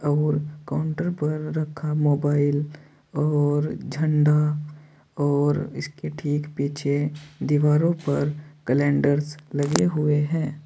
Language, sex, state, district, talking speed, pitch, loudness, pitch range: Hindi, male, Uttar Pradesh, Saharanpur, 95 wpm, 150 Hz, -24 LUFS, 145-150 Hz